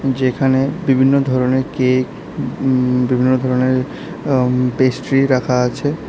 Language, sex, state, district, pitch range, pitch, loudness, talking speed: Bengali, male, Tripura, South Tripura, 125-135 Hz, 130 Hz, -16 LUFS, 120 wpm